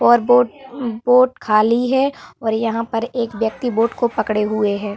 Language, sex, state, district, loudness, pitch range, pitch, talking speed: Hindi, female, Uttar Pradesh, Varanasi, -18 LUFS, 220-245 Hz, 230 Hz, 180 wpm